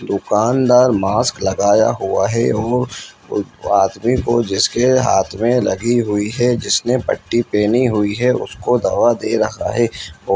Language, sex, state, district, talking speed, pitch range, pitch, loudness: Hindi, female, Uttarakhand, Tehri Garhwal, 155 wpm, 100-125 Hz, 115 Hz, -16 LUFS